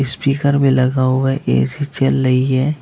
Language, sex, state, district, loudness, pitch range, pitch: Hindi, male, Uttar Pradesh, Lucknow, -15 LUFS, 130-140 Hz, 135 Hz